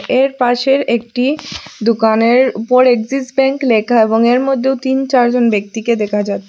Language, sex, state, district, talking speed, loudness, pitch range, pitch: Bengali, female, Assam, Hailakandi, 150 wpm, -13 LUFS, 225-265 Hz, 245 Hz